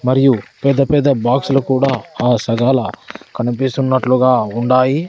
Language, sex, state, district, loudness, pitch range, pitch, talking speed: Telugu, male, Andhra Pradesh, Sri Satya Sai, -15 LUFS, 125-135 Hz, 130 Hz, 120 wpm